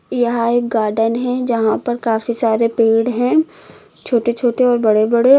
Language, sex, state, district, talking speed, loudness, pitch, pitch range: Hindi, female, Uttar Pradesh, Lucknow, 180 wpm, -16 LUFS, 235 Hz, 225-245 Hz